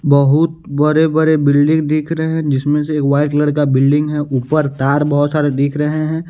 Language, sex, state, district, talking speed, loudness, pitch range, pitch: Hindi, male, Bihar, West Champaran, 210 wpm, -15 LUFS, 145-155 Hz, 150 Hz